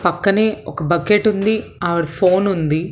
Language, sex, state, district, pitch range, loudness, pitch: Telugu, female, Telangana, Hyderabad, 170-210 Hz, -17 LUFS, 185 Hz